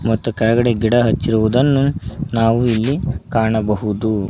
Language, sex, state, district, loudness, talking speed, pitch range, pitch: Kannada, male, Karnataka, Koppal, -17 LUFS, 100 wpm, 110-120 Hz, 115 Hz